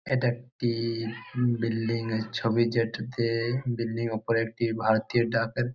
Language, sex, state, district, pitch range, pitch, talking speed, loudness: Bengali, male, West Bengal, Jalpaiguri, 115-120 Hz, 115 Hz, 125 wpm, -28 LUFS